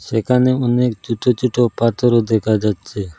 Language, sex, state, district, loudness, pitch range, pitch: Bengali, male, Assam, Hailakandi, -17 LUFS, 110-125 Hz, 115 Hz